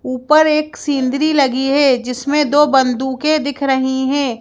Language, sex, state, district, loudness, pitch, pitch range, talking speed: Hindi, female, Madhya Pradesh, Bhopal, -15 LUFS, 275 Hz, 260-295 Hz, 150 wpm